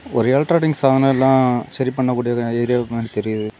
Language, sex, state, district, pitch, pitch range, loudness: Tamil, male, Tamil Nadu, Kanyakumari, 125 Hz, 115-135 Hz, -18 LUFS